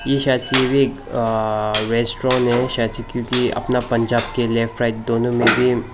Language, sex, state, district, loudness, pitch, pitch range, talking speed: Hindi, male, Nagaland, Dimapur, -19 LUFS, 120 Hz, 115-125 Hz, 100 wpm